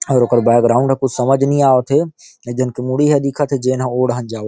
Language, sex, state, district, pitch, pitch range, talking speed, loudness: Chhattisgarhi, male, Chhattisgarh, Rajnandgaon, 130 Hz, 125-140 Hz, 270 wpm, -15 LUFS